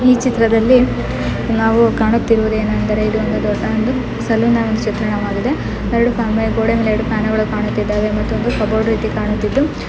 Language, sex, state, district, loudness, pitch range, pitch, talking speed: Kannada, female, Karnataka, Belgaum, -16 LUFS, 215-230 Hz, 220 Hz, 135 wpm